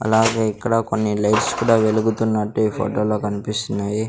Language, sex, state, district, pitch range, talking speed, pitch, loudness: Telugu, male, Andhra Pradesh, Sri Satya Sai, 105-110 Hz, 145 wpm, 110 Hz, -20 LUFS